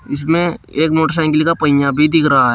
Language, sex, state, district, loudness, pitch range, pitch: Hindi, male, Uttar Pradesh, Shamli, -14 LUFS, 150-165 Hz, 155 Hz